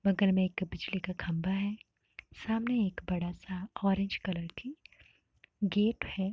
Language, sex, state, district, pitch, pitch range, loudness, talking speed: Hindi, female, Uttar Pradesh, Varanasi, 195 Hz, 185-205 Hz, -33 LUFS, 150 wpm